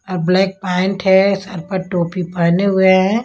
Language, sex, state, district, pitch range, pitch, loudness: Hindi, female, Punjab, Kapurthala, 180-195 Hz, 190 Hz, -16 LUFS